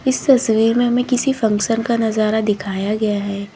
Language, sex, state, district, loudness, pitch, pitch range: Hindi, female, Uttar Pradesh, Lalitpur, -17 LUFS, 220 Hz, 210-240 Hz